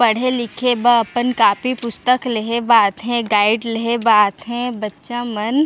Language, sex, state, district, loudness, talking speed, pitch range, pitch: Chhattisgarhi, female, Chhattisgarh, Raigarh, -17 LUFS, 170 wpm, 220-245 Hz, 235 Hz